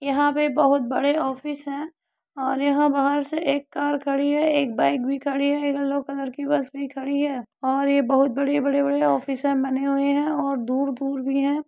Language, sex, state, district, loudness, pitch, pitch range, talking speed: Hindi, female, Uttar Pradesh, Muzaffarnagar, -23 LUFS, 280 Hz, 275-290 Hz, 210 wpm